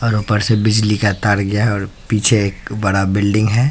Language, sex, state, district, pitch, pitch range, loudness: Hindi, male, Bihar, Katihar, 105 Hz, 100-110 Hz, -16 LUFS